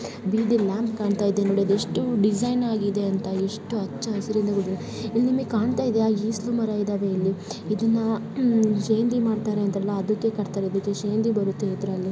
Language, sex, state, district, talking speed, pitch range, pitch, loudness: Kannada, female, Karnataka, Belgaum, 170 wpm, 200-225 Hz, 210 Hz, -24 LUFS